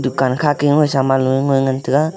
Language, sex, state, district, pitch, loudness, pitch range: Wancho, male, Arunachal Pradesh, Longding, 135 Hz, -16 LUFS, 130-145 Hz